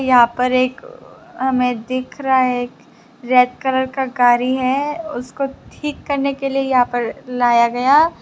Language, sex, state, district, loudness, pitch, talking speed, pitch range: Hindi, female, Tripura, West Tripura, -17 LUFS, 255 Hz, 160 wpm, 245-270 Hz